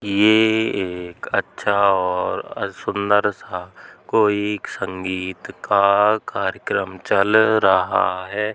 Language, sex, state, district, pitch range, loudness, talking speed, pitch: Hindi, male, Uttar Pradesh, Jalaun, 95-105 Hz, -19 LUFS, 90 wpm, 100 Hz